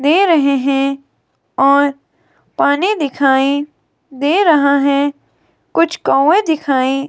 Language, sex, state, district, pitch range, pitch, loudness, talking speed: Hindi, female, Himachal Pradesh, Shimla, 275-310 Hz, 280 Hz, -14 LUFS, 100 wpm